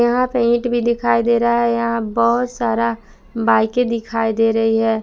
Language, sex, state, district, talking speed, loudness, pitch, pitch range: Hindi, female, Jharkhand, Palamu, 190 wpm, -17 LUFS, 235 Hz, 225-240 Hz